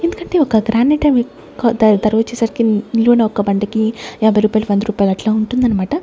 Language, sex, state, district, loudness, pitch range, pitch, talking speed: Telugu, female, Andhra Pradesh, Sri Satya Sai, -15 LUFS, 215-245 Hz, 225 Hz, 170 wpm